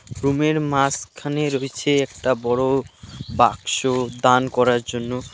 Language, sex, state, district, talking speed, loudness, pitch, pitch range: Bengali, male, West Bengal, Alipurduar, 100 wpm, -20 LUFS, 130 Hz, 120-140 Hz